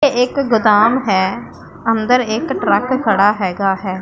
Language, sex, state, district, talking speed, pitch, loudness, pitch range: Punjabi, female, Punjab, Pathankot, 150 wpm, 220 Hz, -15 LUFS, 200-250 Hz